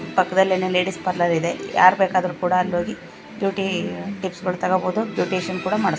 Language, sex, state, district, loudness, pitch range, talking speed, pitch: Kannada, female, Karnataka, Dakshina Kannada, -21 LUFS, 180-190 Hz, 160 wpm, 185 Hz